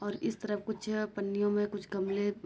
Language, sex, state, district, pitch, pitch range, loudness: Hindi, female, Uttar Pradesh, Jyotiba Phule Nagar, 205 Hz, 200-210 Hz, -34 LUFS